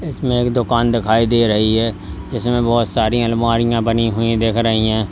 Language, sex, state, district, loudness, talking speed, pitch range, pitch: Hindi, male, Uttar Pradesh, Lalitpur, -16 LUFS, 190 wpm, 110-120 Hz, 115 Hz